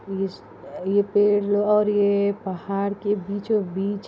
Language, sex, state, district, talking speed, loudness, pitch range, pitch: Hindi, female, Chhattisgarh, Rajnandgaon, 145 wpm, -23 LUFS, 195-205 Hz, 200 Hz